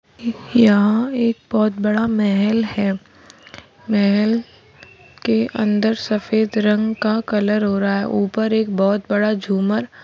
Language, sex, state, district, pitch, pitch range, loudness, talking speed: Hindi, female, Rajasthan, Churu, 215 Hz, 205-225 Hz, -18 LUFS, 130 wpm